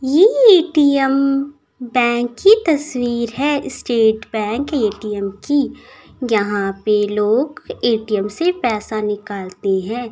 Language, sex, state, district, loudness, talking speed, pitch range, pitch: Hindi, female, Bihar, Muzaffarpur, -17 LUFS, 100 wpm, 210-285 Hz, 240 Hz